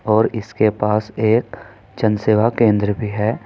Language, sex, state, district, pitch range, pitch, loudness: Hindi, male, Uttar Pradesh, Saharanpur, 105-110 Hz, 110 Hz, -18 LUFS